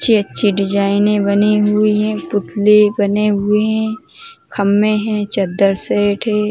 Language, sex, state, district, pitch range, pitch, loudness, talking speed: Hindi, female, Uttar Pradesh, Ghazipur, 200-215 Hz, 210 Hz, -15 LUFS, 140 wpm